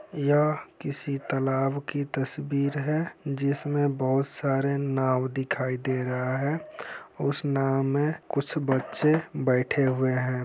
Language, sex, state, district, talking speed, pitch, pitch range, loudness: Hindi, male, Bihar, Saran, 125 wpm, 140 Hz, 130-145 Hz, -27 LUFS